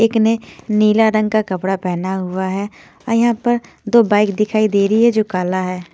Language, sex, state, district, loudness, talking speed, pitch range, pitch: Hindi, female, Odisha, Sambalpur, -16 LUFS, 210 wpm, 190-220 Hz, 210 Hz